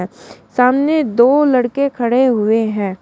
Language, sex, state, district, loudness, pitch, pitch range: Hindi, female, Uttar Pradesh, Shamli, -14 LUFS, 250 Hz, 220-275 Hz